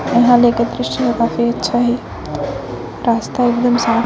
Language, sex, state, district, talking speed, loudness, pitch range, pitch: Chhattisgarhi, female, Chhattisgarh, Raigarh, 150 wpm, -16 LUFS, 235-240 Hz, 240 Hz